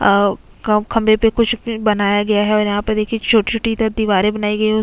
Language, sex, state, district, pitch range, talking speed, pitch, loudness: Hindi, female, Chhattisgarh, Sukma, 210-225 Hz, 250 wpm, 215 Hz, -16 LUFS